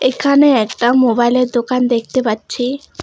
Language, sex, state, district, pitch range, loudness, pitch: Bengali, female, West Bengal, Alipurduar, 240-260 Hz, -14 LUFS, 250 Hz